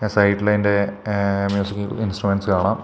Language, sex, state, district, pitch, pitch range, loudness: Malayalam, male, Kerala, Kasaragod, 100 Hz, 100-105 Hz, -20 LUFS